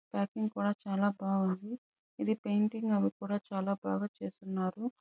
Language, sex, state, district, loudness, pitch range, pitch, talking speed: Telugu, male, Andhra Pradesh, Chittoor, -34 LUFS, 190-215 Hz, 200 Hz, 130 wpm